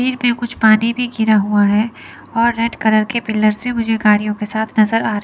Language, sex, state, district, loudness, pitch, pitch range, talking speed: Hindi, female, Chandigarh, Chandigarh, -16 LUFS, 220 Hz, 215-235 Hz, 220 wpm